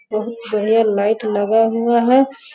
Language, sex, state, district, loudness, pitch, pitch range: Hindi, female, Bihar, Sitamarhi, -16 LUFS, 225 Hz, 215-235 Hz